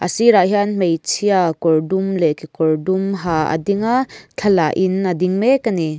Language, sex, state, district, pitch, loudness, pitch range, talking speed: Mizo, female, Mizoram, Aizawl, 185 Hz, -17 LUFS, 160-200 Hz, 200 wpm